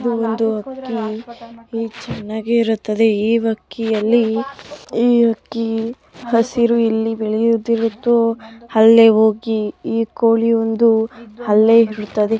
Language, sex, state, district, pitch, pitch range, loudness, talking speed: Kannada, female, Karnataka, Bijapur, 225 Hz, 220-230 Hz, -17 LUFS, 85 wpm